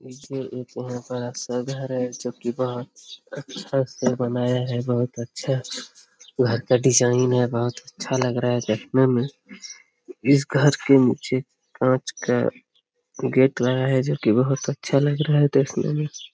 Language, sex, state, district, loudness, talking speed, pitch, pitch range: Hindi, male, Bihar, Jamui, -22 LUFS, 160 wpm, 125 Hz, 125-135 Hz